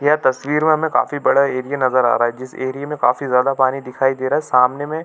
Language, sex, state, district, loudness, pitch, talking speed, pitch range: Hindi, male, Chhattisgarh, Bilaspur, -17 LUFS, 135 Hz, 295 wpm, 130-145 Hz